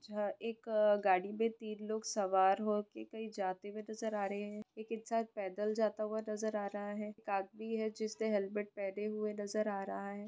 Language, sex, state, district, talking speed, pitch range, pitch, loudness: Hindi, female, West Bengal, Purulia, 210 wpm, 205-220 Hz, 210 Hz, -38 LUFS